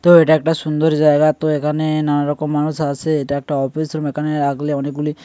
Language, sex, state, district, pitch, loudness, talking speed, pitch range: Bengali, male, West Bengal, Paschim Medinipur, 150 Hz, -17 LUFS, 205 wpm, 145-155 Hz